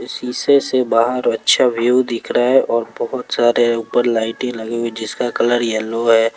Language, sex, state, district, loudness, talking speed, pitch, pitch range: Hindi, male, Jharkhand, Palamu, -17 LUFS, 180 wpm, 115 Hz, 115-125 Hz